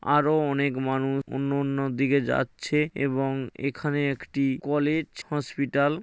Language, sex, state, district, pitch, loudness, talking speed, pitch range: Bengali, male, West Bengal, Paschim Medinipur, 140 Hz, -26 LUFS, 130 wpm, 135-145 Hz